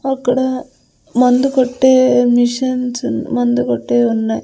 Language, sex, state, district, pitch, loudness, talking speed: Telugu, female, Andhra Pradesh, Sri Satya Sai, 250 Hz, -14 LUFS, 95 wpm